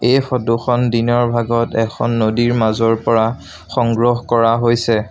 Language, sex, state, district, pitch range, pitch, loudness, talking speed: Assamese, male, Assam, Sonitpur, 115-120 Hz, 115 Hz, -16 LUFS, 140 wpm